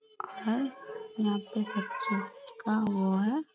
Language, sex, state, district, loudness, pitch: Hindi, female, Bihar, Bhagalpur, -32 LUFS, 220 Hz